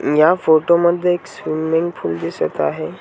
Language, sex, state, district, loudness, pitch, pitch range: Marathi, male, Maharashtra, Washim, -17 LUFS, 165 Hz, 155-175 Hz